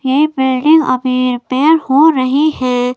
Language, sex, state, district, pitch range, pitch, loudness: Hindi, female, Himachal Pradesh, Shimla, 255-305 Hz, 265 Hz, -12 LUFS